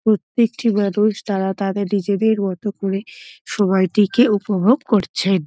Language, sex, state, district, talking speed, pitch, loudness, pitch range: Bengali, female, West Bengal, Paschim Medinipur, 120 wpm, 205 Hz, -18 LUFS, 195-215 Hz